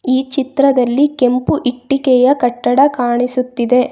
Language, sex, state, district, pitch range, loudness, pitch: Kannada, female, Karnataka, Bangalore, 250-275 Hz, -14 LUFS, 255 Hz